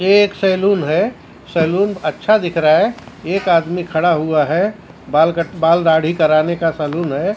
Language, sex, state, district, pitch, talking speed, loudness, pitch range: Hindi, male, Maharashtra, Mumbai Suburban, 170 Hz, 185 wpm, -16 LUFS, 160-195 Hz